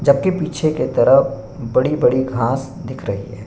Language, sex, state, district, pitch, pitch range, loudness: Hindi, male, Bihar, Bhagalpur, 135 Hz, 115-155 Hz, -18 LUFS